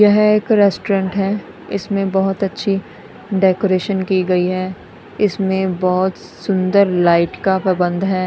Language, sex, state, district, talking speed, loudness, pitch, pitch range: Hindi, female, Punjab, Kapurthala, 130 wpm, -17 LUFS, 190 Hz, 185-200 Hz